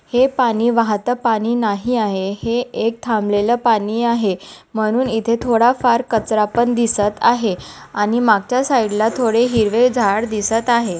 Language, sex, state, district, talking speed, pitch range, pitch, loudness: Marathi, female, Maharashtra, Nagpur, 145 wpm, 215-240 Hz, 230 Hz, -17 LUFS